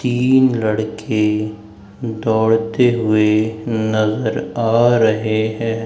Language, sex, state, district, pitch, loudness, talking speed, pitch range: Hindi, male, Madhya Pradesh, Dhar, 110 Hz, -17 LUFS, 80 wpm, 110-115 Hz